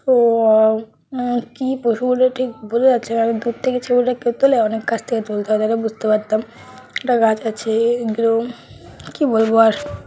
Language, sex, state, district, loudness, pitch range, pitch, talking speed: Bengali, female, West Bengal, Paschim Medinipur, -18 LUFS, 220-245 Hz, 230 Hz, 165 wpm